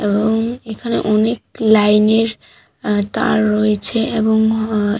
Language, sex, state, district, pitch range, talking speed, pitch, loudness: Bengali, female, West Bengal, Purulia, 210-225 Hz, 145 wpm, 220 Hz, -16 LUFS